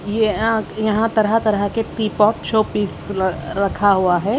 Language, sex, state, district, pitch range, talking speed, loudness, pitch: Hindi, female, Haryana, Charkhi Dadri, 200-220 Hz, 135 wpm, -18 LUFS, 215 Hz